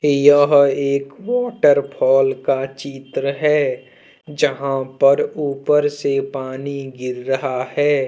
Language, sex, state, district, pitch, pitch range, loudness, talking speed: Hindi, male, Jharkhand, Deoghar, 140 Hz, 135-145 Hz, -18 LUFS, 105 wpm